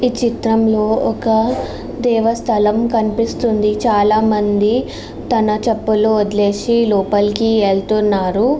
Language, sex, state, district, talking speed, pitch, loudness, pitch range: Telugu, female, Andhra Pradesh, Srikakulam, 75 wpm, 220 Hz, -15 LUFS, 210-230 Hz